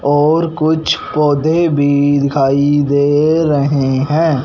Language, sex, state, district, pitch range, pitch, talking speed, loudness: Hindi, male, Punjab, Fazilka, 140-155 Hz, 145 Hz, 110 wpm, -13 LUFS